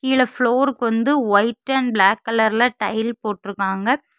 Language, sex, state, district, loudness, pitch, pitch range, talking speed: Tamil, female, Tamil Nadu, Kanyakumari, -19 LUFS, 230 Hz, 210-255 Hz, 130 wpm